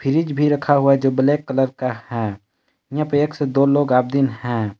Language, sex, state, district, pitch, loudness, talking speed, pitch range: Hindi, male, Jharkhand, Palamu, 135 Hz, -19 LUFS, 225 wpm, 125-145 Hz